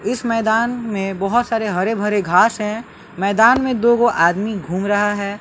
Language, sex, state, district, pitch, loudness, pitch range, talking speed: Hindi, male, Bihar, West Champaran, 210 Hz, -17 LUFS, 195-230 Hz, 190 wpm